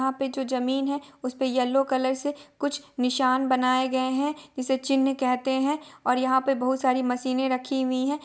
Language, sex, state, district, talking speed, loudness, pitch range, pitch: Hindi, female, Chhattisgarh, Bilaspur, 205 wpm, -26 LUFS, 255-270 Hz, 260 Hz